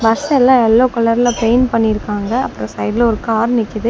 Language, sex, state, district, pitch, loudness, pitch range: Tamil, female, Tamil Nadu, Kanyakumari, 230 Hz, -14 LUFS, 220-245 Hz